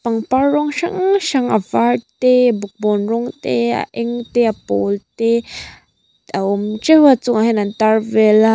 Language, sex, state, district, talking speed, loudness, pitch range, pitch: Mizo, female, Mizoram, Aizawl, 190 wpm, -16 LUFS, 205-250 Hz, 225 Hz